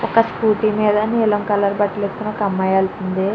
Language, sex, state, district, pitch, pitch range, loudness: Telugu, female, Andhra Pradesh, Chittoor, 205 Hz, 195-215 Hz, -18 LUFS